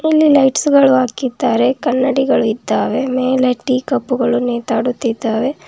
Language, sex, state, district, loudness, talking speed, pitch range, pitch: Kannada, female, Karnataka, Bangalore, -15 LUFS, 115 wpm, 240-270 Hz, 255 Hz